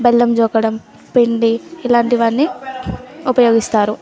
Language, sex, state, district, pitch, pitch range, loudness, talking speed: Telugu, female, Telangana, Nalgonda, 235 Hz, 225-250 Hz, -15 LUFS, 90 wpm